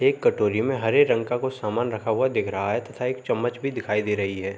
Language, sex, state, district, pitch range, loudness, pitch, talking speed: Hindi, male, Uttar Pradesh, Jalaun, 105-130 Hz, -24 LUFS, 120 Hz, 290 wpm